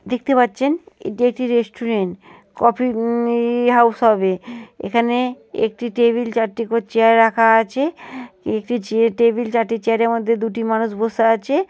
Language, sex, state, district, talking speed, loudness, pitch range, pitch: Bengali, female, West Bengal, Jhargram, 145 wpm, -18 LUFS, 225-245 Hz, 235 Hz